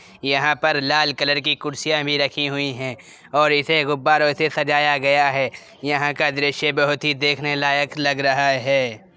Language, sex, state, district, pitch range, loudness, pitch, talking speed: Hindi, male, Uttar Pradesh, Jyotiba Phule Nagar, 140-150 Hz, -19 LUFS, 145 Hz, 175 wpm